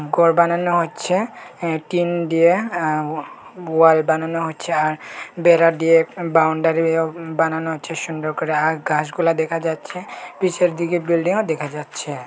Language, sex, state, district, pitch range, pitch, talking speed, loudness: Bengali, male, Tripura, Unakoti, 160-170 Hz, 165 Hz, 135 wpm, -19 LUFS